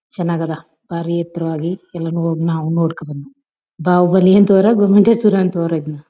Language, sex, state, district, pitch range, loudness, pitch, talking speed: Kannada, female, Karnataka, Chamarajanagar, 165-185 Hz, -15 LUFS, 170 Hz, 120 wpm